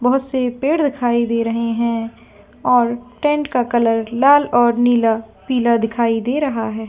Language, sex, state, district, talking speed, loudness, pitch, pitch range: Hindi, female, Jharkhand, Jamtara, 165 wpm, -17 LUFS, 240 Hz, 230-260 Hz